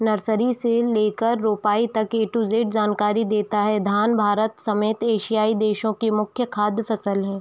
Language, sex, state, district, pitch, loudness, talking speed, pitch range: Hindi, female, Chhattisgarh, Raigarh, 215 Hz, -21 LUFS, 180 wpm, 210-225 Hz